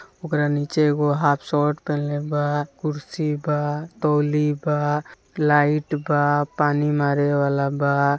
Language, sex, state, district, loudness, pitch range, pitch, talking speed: Bhojpuri, male, Bihar, East Champaran, -22 LUFS, 145-150 Hz, 145 Hz, 125 wpm